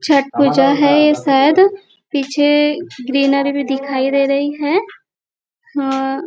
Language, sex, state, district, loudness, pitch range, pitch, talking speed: Hindi, female, Maharashtra, Nagpur, -15 LUFS, 275-300 Hz, 280 Hz, 135 wpm